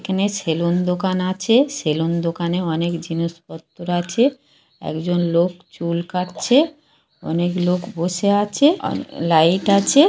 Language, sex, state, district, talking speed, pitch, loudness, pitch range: Bengali, female, West Bengal, Jhargram, 115 wpm, 180 Hz, -20 LUFS, 170-200 Hz